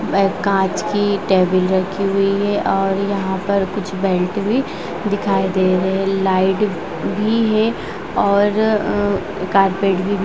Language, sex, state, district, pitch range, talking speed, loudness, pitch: Hindi, female, Bihar, Vaishali, 190-205 Hz, 130 wpm, -18 LUFS, 195 Hz